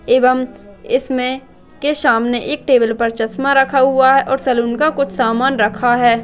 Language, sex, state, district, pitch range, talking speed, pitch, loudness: Hindi, female, Chhattisgarh, Jashpur, 235-270 Hz, 175 wpm, 255 Hz, -15 LUFS